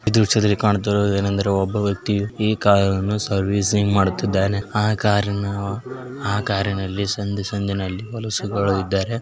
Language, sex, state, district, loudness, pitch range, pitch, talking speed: Kannada, male, Karnataka, Belgaum, -21 LUFS, 100-105 Hz, 100 Hz, 110 wpm